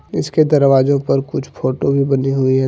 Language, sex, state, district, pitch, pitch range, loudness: Hindi, male, Jharkhand, Deoghar, 135 Hz, 135-140 Hz, -15 LUFS